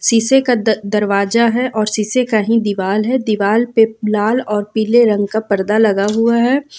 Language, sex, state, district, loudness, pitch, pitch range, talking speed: Hindi, female, Jharkhand, Ranchi, -15 LUFS, 220 Hz, 210-235 Hz, 195 wpm